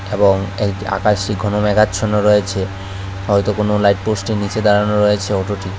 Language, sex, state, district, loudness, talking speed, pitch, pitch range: Bengali, male, Tripura, West Tripura, -16 LUFS, 135 wpm, 105 Hz, 95-105 Hz